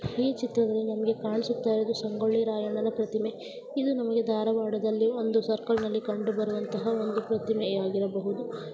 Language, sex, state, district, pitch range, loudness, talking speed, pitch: Kannada, female, Karnataka, Dharwad, 220-230 Hz, -29 LUFS, 115 wpm, 220 Hz